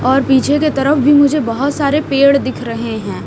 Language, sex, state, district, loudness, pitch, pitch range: Hindi, female, Punjab, Pathankot, -13 LUFS, 275 Hz, 260-290 Hz